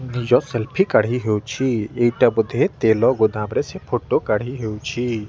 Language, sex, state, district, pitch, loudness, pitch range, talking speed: Odia, male, Odisha, Nuapada, 120 Hz, -20 LUFS, 110-125 Hz, 150 wpm